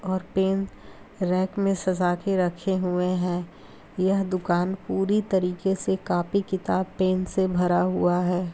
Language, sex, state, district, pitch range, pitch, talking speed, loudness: Hindi, female, Uttar Pradesh, Hamirpur, 180-190 Hz, 185 Hz, 150 wpm, -25 LUFS